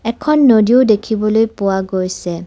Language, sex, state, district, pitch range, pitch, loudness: Assamese, female, Assam, Kamrup Metropolitan, 190-230 Hz, 215 Hz, -14 LUFS